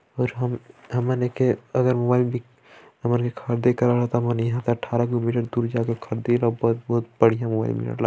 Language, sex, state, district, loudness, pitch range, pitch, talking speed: Chhattisgarhi, male, Chhattisgarh, Balrampur, -23 LUFS, 115-125 Hz, 120 Hz, 125 wpm